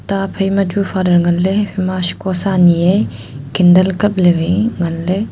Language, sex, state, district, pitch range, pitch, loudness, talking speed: Wancho, female, Arunachal Pradesh, Longding, 175-195 Hz, 185 Hz, -14 LUFS, 190 wpm